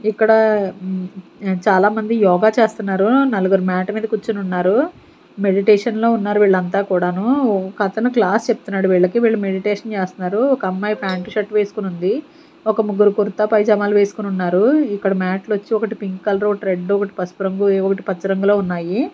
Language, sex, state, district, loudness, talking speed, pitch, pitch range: Telugu, female, Andhra Pradesh, Sri Satya Sai, -17 LUFS, 155 wpm, 205 Hz, 190-220 Hz